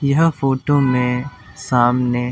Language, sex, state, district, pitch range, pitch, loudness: Hindi, male, Delhi, New Delhi, 125-140 Hz, 125 Hz, -17 LUFS